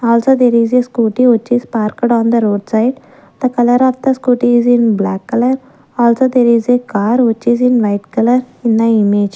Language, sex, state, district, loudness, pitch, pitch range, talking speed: English, female, Maharashtra, Gondia, -13 LUFS, 240 Hz, 225-250 Hz, 210 wpm